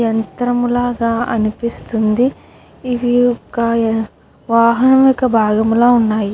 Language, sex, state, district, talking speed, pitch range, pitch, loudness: Telugu, female, Andhra Pradesh, Guntur, 95 wpm, 225-245 Hz, 235 Hz, -15 LUFS